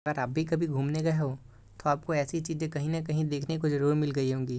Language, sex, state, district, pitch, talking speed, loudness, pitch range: Hindi, male, Bihar, East Champaran, 150 Hz, 275 wpm, -30 LUFS, 135-160 Hz